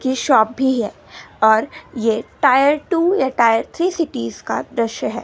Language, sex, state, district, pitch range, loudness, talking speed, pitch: Hindi, female, Gujarat, Gandhinagar, 225-300 Hz, -18 LUFS, 160 wpm, 260 Hz